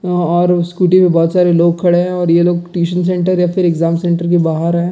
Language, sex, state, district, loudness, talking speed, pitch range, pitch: Hindi, male, Bihar, Gaya, -13 LUFS, 245 wpm, 170-180 Hz, 175 Hz